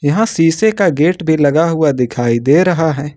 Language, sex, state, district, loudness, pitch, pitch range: Hindi, male, Jharkhand, Ranchi, -13 LUFS, 160 Hz, 145-170 Hz